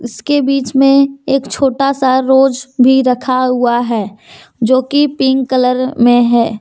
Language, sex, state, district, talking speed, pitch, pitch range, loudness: Hindi, female, Jharkhand, Deoghar, 155 wpm, 260 Hz, 245-270 Hz, -12 LUFS